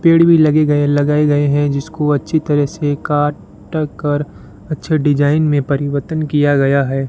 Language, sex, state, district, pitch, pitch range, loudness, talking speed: Hindi, male, Rajasthan, Bikaner, 145 Hz, 145-155 Hz, -15 LUFS, 170 wpm